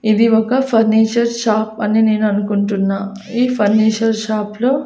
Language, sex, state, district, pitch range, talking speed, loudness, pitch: Telugu, female, Andhra Pradesh, Annamaya, 210-230 Hz, 150 wpm, -15 LUFS, 220 Hz